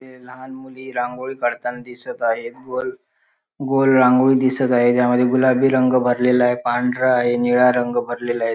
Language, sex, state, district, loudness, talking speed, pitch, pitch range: Marathi, male, Maharashtra, Sindhudurg, -18 LUFS, 155 wpm, 125 Hz, 120-130 Hz